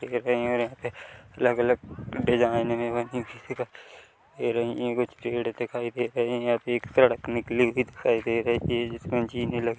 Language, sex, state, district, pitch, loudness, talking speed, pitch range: Hindi, male, Chhattisgarh, Korba, 120 Hz, -27 LUFS, 220 wpm, 115-120 Hz